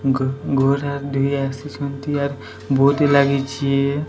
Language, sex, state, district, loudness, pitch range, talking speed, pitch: Odia, male, Odisha, Sambalpur, -20 LUFS, 135-140 Hz, 105 wpm, 140 Hz